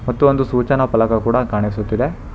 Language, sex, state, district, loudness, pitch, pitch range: Kannada, male, Karnataka, Bangalore, -17 LUFS, 115 Hz, 105-125 Hz